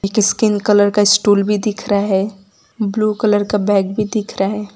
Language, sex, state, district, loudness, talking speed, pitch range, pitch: Hindi, female, Gujarat, Valsad, -16 LUFS, 215 wpm, 200-215 Hz, 205 Hz